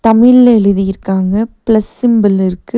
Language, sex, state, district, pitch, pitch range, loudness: Tamil, female, Tamil Nadu, Nilgiris, 220 Hz, 195-230 Hz, -11 LUFS